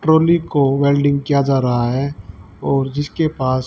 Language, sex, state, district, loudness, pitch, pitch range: Hindi, female, Haryana, Charkhi Dadri, -17 LUFS, 140 Hz, 130-145 Hz